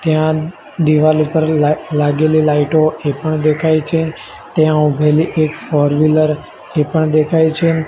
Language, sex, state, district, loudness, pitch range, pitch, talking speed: Gujarati, male, Gujarat, Gandhinagar, -14 LUFS, 150-160 Hz, 155 Hz, 135 wpm